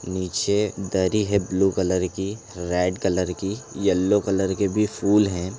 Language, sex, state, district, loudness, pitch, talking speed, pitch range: Hindi, male, Chhattisgarh, Rajnandgaon, -23 LUFS, 95 Hz, 160 wpm, 90-100 Hz